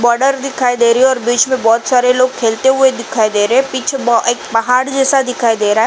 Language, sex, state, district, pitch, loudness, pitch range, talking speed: Hindi, female, Uttar Pradesh, Jalaun, 250 Hz, -13 LUFS, 230-265 Hz, 235 wpm